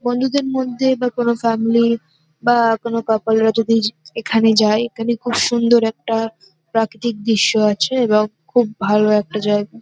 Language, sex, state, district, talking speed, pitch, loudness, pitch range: Bengali, female, West Bengal, North 24 Parganas, 145 wpm, 225 Hz, -17 LUFS, 215-235 Hz